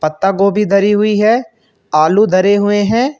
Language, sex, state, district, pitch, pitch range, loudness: Hindi, male, Uttar Pradesh, Shamli, 205 Hz, 195-215 Hz, -12 LUFS